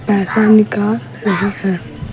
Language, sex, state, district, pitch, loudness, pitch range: Hindi, female, Bihar, Patna, 205 Hz, -15 LUFS, 195-215 Hz